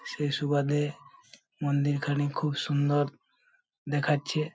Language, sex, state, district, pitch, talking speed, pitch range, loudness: Bengali, male, West Bengal, Paschim Medinipur, 145 Hz, 90 wpm, 145-150 Hz, -29 LUFS